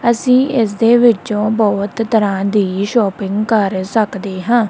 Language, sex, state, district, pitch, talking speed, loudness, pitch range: Punjabi, female, Punjab, Kapurthala, 215 Hz, 140 wpm, -15 LUFS, 200-235 Hz